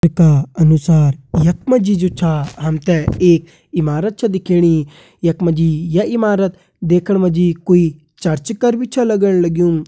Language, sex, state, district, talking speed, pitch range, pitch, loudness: Hindi, male, Uttarakhand, Tehri Garhwal, 170 wpm, 160-190 Hz, 170 Hz, -15 LUFS